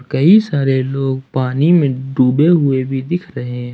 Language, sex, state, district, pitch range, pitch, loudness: Hindi, male, Jharkhand, Ranchi, 130-155 Hz, 135 Hz, -15 LUFS